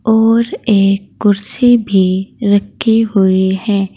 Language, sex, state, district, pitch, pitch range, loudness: Hindi, female, Uttar Pradesh, Saharanpur, 205 Hz, 195-225 Hz, -13 LUFS